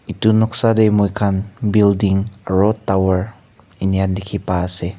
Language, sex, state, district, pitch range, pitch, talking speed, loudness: Nagamese, male, Nagaland, Kohima, 95-110 Hz, 100 Hz, 145 wpm, -17 LUFS